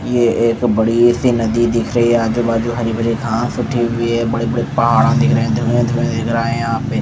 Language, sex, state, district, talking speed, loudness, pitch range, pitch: Hindi, male, Punjab, Fazilka, 265 wpm, -15 LUFS, 115-120 Hz, 115 Hz